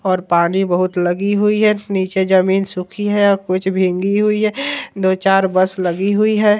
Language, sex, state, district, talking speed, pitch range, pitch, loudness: Hindi, male, Bihar, Vaishali, 180 wpm, 185-205 Hz, 195 Hz, -16 LUFS